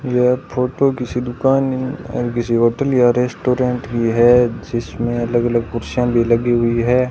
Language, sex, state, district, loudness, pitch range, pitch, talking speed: Hindi, male, Rajasthan, Bikaner, -17 LUFS, 120-125 Hz, 120 Hz, 160 wpm